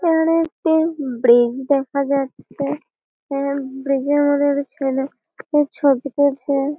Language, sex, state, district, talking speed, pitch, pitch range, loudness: Bengali, female, West Bengal, Malda, 95 wpm, 280 Hz, 275-295 Hz, -19 LUFS